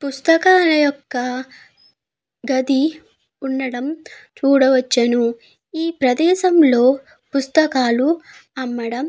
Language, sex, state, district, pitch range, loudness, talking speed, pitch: Telugu, female, Andhra Pradesh, Guntur, 255-315 Hz, -17 LUFS, 65 wpm, 275 Hz